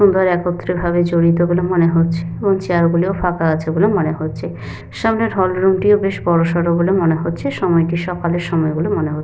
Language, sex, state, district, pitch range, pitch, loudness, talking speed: Bengali, female, West Bengal, Malda, 165-185 Hz, 175 Hz, -16 LUFS, 195 wpm